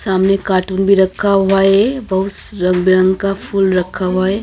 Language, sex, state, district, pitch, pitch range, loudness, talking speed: Hindi, female, Maharashtra, Gondia, 190 Hz, 185-195 Hz, -14 LUFS, 175 wpm